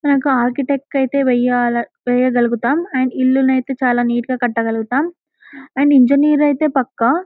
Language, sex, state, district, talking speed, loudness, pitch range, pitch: Telugu, female, Telangana, Karimnagar, 125 wpm, -16 LUFS, 245-280 Hz, 265 Hz